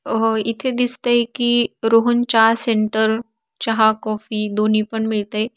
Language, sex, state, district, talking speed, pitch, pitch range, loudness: Marathi, female, Maharashtra, Aurangabad, 130 wpm, 225 Hz, 215-240 Hz, -18 LUFS